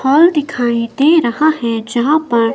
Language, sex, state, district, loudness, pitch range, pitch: Hindi, female, Himachal Pradesh, Shimla, -14 LUFS, 235-305 Hz, 265 Hz